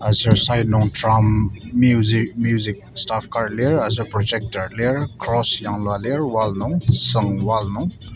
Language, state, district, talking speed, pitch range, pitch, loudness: Ao, Nagaland, Kohima, 145 wpm, 105-120 Hz, 110 Hz, -18 LUFS